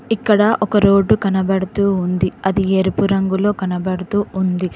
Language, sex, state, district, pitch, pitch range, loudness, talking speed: Telugu, female, Telangana, Mahabubabad, 195 Hz, 185-205 Hz, -17 LUFS, 125 wpm